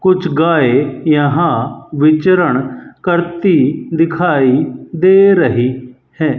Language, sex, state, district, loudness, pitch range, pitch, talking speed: Hindi, male, Rajasthan, Bikaner, -13 LUFS, 135-175 Hz, 160 Hz, 85 wpm